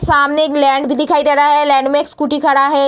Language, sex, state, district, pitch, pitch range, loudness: Hindi, female, Bihar, Lakhisarai, 290 Hz, 280-295 Hz, -13 LUFS